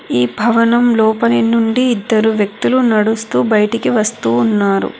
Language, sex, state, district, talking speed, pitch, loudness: Telugu, female, Telangana, Hyderabad, 120 wpm, 220 Hz, -13 LUFS